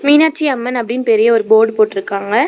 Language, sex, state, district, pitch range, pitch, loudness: Tamil, female, Tamil Nadu, Namakkal, 220-255 Hz, 230 Hz, -13 LUFS